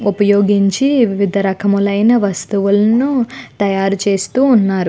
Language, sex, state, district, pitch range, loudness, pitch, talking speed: Telugu, female, Andhra Pradesh, Guntur, 195-230 Hz, -14 LUFS, 200 Hz, 75 wpm